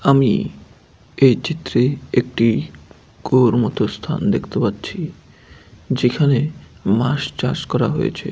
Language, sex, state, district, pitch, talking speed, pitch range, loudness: Bengali, male, West Bengal, Dakshin Dinajpur, 130 Hz, 100 wpm, 125-140 Hz, -19 LUFS